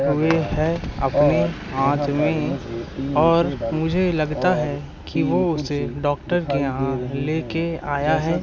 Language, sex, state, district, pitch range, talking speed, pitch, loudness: Hindi, male, Madhya Pradesh, Katni, 135-160 Hz, 130 wpm, 145 Hz, -22 LUFS